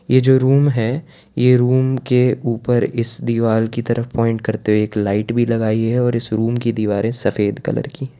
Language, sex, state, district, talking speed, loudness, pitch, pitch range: Hindi, male, Gujarat, Valsad, 210 wpm, -17 LUFS, 120 Hz, 110-130 Hz